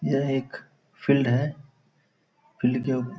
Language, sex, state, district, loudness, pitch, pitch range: Hindi, male, Bihar, Purnia, -26 LUFS, 135 Hz, 125-140 Hz